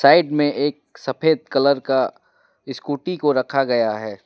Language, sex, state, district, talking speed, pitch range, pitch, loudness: Hindi, male, West Bengal, Alipurduar, 155 wpm, 130-145 Hz, 140 Hz, -20 LUFS